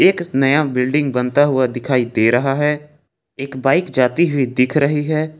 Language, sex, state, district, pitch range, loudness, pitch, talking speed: Hindi, male, Jharkhand, Ranchi, 125-150 Hz, -16 LUFS, 135 Hz, 180 wpm